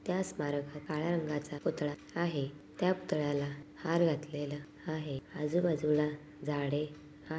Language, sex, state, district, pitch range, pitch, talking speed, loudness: Marathi, female, Maharashtra, Sindhudurg, 145-160 Hz, 150 Hz, 120 wpm, -35 LUFS